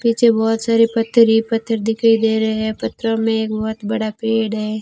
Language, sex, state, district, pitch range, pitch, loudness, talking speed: Hindi, female, Rajasthan, Jaisalmer, 220-225 Hz, 225 Hz, -17 LUFS, 210 wpm